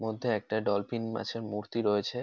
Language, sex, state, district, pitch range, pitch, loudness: Bengali, male, West Bengal, North 24 Parganas, 105-115 Hz, 110 Hz, -32 LUFS